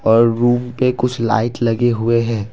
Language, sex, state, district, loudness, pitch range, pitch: Hindi, male, Assam, Kamrup Metropolitan, -16 LUFS, 115-120 Hz, 115 Hz